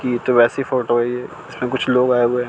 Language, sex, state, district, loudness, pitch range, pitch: Hindi, male, Chandigarh, Chandigarh, -18 LUFS, 120-125 Hz, 125 Hz